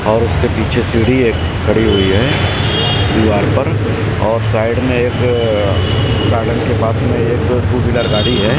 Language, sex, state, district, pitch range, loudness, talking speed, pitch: Hindi, male, Maharashtra, Mumbai Suburban, 105-120 Hz, -13 LUFS, 160 wpm, 110 Hz